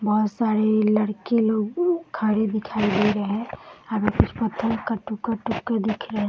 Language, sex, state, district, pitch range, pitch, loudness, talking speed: Hindi, female, Bihar, Saharsa, 210-225 Hz, 215 Hz, -23 LUFS, 180 wpm